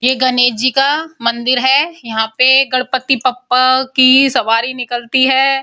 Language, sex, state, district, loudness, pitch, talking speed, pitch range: Hindi, female, Uttar Pradesh, Muzaffarnagar, -12 LUFS, 255 Hz, 150 wpm, 245-265 Hz